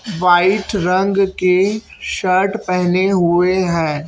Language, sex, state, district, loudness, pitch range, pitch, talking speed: Hindi, male, Chhattisgarh, Raipur, -16 LUFS, 180-195 Hz, 185 Hz, 105 wpm